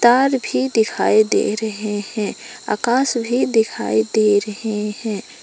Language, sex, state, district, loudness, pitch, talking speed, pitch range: Hindi, female, Jharkhand, Palamu, -19 LUFS, 220 Hz, 130 wpm, 210-240 Hz